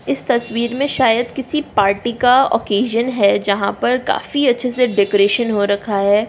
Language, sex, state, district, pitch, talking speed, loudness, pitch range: Hindi, female, Uttar Pradesh, Jyotiba Phule Nagar, 235 Hz, 170 wpm, -16 LUFS, 205-250 Hz